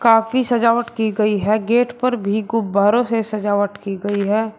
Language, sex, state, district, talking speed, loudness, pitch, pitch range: Hindi, male, Uttar Pradesh, Shamli, 180 wpm, -18 LUFS, 220 Hz, 205-235 Hz